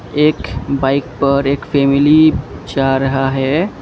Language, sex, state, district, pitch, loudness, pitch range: Hindi, male, Assam, Kamrup Metropolitan, 140 Hz, -14 LUFS, 135-150 Hz